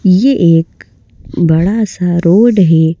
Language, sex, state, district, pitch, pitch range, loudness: Hindi, female, Madhya Pradesh, Bhopal, 170 Hz, 160-190 Hz, -10 LUFS